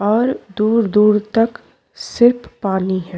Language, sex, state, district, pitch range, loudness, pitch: Hindi, female, Uttar Pradesh, Jyotiba Phule Nagar, 200-230 Hz, -16 LUFS, 210 Hz